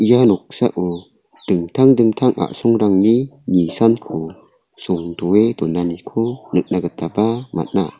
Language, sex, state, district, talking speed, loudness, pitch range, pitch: Garo, male, Meghalaya, South Garo Hills, 80 wpm, -17 LUFS, 85-120 Hz, 105 Hz